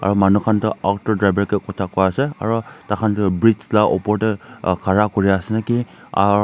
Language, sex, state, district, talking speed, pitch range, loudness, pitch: Nagamese, male, Nagaland, Kohima, 185 wpm, 100-110 Hz, -19 LUFS, 105 Hz